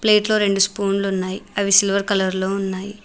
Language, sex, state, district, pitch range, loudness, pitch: Telugu, female, Telangana, Mahabubabad, 195-205 Hz, -19 LUFS, 195 Hz